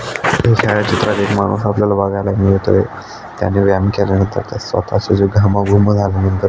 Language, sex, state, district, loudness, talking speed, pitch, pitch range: Marathi, male, Maharashtra, Aurangabad, -15 LUFS, 120 wpm, 100 Hz, 100-105 Hz